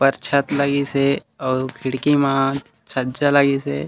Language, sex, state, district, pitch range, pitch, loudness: Chhattisgarhi, male, Chhattisgarh, Raigarh, 130-140 Hz, 140 Hz, -20 LUFS